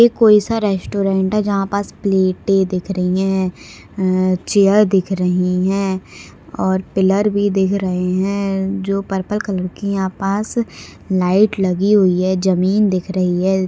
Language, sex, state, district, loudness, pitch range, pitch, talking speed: Hindi, female, Maharashtra, Solapur, -17 LUFS, 185-200 Hz, 195 Hz, 155 wpm